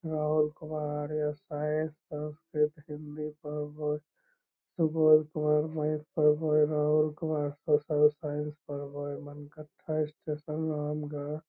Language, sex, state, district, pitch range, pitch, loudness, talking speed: Magahi, male, Bihar, Lakhisarai, 150-155 Hz, 150 Hz, -31 LUFS, 125 wpm